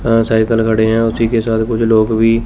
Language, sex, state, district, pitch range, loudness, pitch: Hindi, male, Chandigarh, Chandigarh, 110-115 Hz, -13 LUFS, 115 Hz